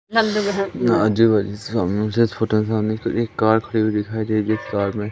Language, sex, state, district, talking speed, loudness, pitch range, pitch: Hindi, male, Madhya Pradesh, Umaria, 220 wpm, -20 LUFS, 105-115 Hz, 110 Hz